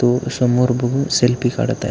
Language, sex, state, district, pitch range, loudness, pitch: Marathi, male, Maharashtra, Aurangabad, 120-125 Hz, -17 LUFS, 125 Hz